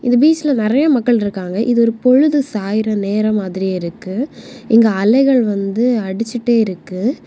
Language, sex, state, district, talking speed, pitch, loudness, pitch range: Tamil, female, Tamil Nadu, Kanyakumari, 140 wpm, 230 Hz, -15 LUFS, 205-250 Hz